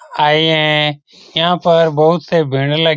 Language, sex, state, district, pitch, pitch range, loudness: Hindi, male, Bihar, Lakhisarai, 160 Hz, 150-165 Hz, -13 LUFS